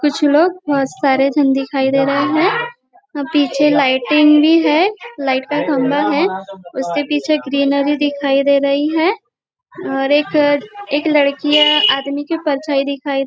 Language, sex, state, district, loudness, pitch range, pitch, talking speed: Hindi, female, Maharashtra, Nagpur, -15 LUFS, 275-300 Hz, 290 Hz, 160 wpm